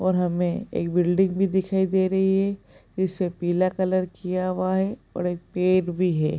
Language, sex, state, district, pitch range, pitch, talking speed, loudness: Hindi, female, Bihar, Supaul, 180-190 Hz, 185 Hz, 190 wpm, -24 LUFS